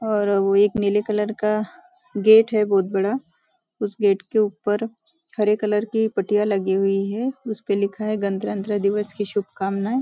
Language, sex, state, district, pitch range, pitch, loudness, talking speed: Hindi, female, Maharashtra, Nagpur, 200-220 Hz, 210 Hz, -21 LUFS, 170 wpm